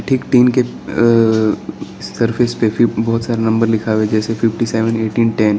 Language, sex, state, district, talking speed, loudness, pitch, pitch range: Hindi, male, Arunachal Pradesh, Lower Dibang Valley, 180 wpm, -15 LUFS, 115 Hz, 110-115 Hz